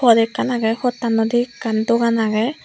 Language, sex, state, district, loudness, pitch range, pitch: Chakma, female, Tripura, Unakoti, -18 LUFS, 225-240 Hz, 230 Hz